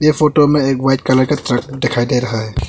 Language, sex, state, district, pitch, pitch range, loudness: Hindi, male, Arunachal Pradesh, Longding, 130 Hz, 125-145 Hz, -15 LUFS